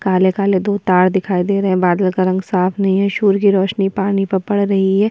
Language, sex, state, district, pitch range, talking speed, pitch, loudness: Hindi, female, Bihar, Kishanganj, 185-200 Hz, 245 wpm, 195 Hz, -15 LUFS